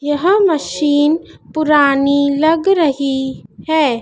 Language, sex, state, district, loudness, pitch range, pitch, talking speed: Hindi, female, Madhya Pradesh, Dhar, -14 LUFS, 280-315 Hz, 295 Hz, 90 wpm